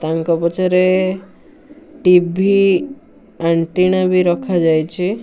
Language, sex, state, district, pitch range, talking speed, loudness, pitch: Odia, male, Odisha, Nuapada, 170-200 Hz, 80 wpm, -15 LUFS, 185 Hz